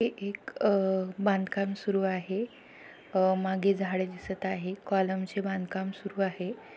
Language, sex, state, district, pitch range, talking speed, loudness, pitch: Marathi, female, Maharashtra, Pune, 190-200 Hz, 140 wpm, -30 LUFS, 195 Hz